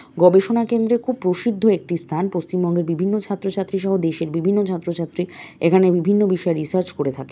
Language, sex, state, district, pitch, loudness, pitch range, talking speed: Bengali, female, West Bengal, North 24 Parganas, 185 Hz, -20 LUFS, 170-200 Hz, 170 wpm